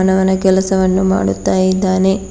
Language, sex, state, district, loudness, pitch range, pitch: Kannada, female, Karnataka, Bidar, -14 LUFS, 185-190 Hz, 190 Hz